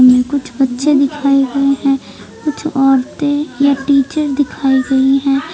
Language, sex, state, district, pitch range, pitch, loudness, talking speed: Hindi, male, Delhi, New Delhi, 265-285 Hz, 275 Hz, -14 LUFS, 140 wpm